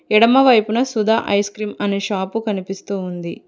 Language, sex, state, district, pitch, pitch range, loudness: Telugu, female, Telangana, Hyderabad, 210 Hz, 195-225 Hz, -18 LUFS